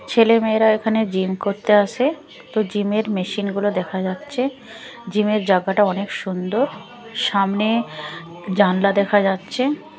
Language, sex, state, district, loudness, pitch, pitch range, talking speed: Bengali, female, Chhattisgarh, Raipur, -20 LUFS, 205 Hz, 195-230 Hz, 125 wpm